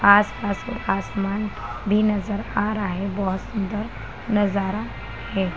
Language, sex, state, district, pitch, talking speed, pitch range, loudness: Hindi, female, Bihar, Kishanganj, 200 Hz, 120 wpm, 195-210 Hz, -24 LUFS